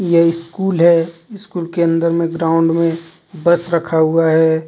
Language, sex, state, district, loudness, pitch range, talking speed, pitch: Hindi, male, Jharkhand, Deoghar, -15 LUFS, 165-170 Hz, 165 wpm, 165 Hz